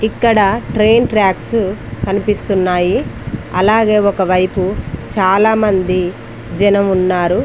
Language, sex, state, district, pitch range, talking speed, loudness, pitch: Telugu, female, Telangana, Mahabubabad, 185-210 Hz, 80 wpm, -14 LUFS, 195 Hz